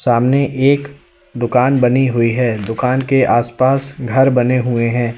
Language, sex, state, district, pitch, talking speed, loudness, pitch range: Hindi, male, Uttar Pradesh, Lalitpur, 125 Hz, 150 wpm, -15 LUFS, 120-135 Hz